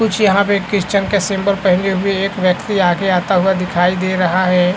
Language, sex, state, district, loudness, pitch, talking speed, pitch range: Hindi, male, Uttar Pradesh, Varanasi, -15 LUFS, 190 Hz, 225 wpm, 185-200 Hz